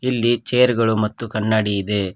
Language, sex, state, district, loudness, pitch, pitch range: Kannada, male, Karnataka, Koppal, -19 LUFS, 110 Hz, 105-120 Hz